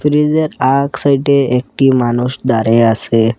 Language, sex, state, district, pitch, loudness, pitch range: Bengali, male, Assam, Kamrup Metropolitan, 130 Hz, -13 LUFS, 120-140 Hz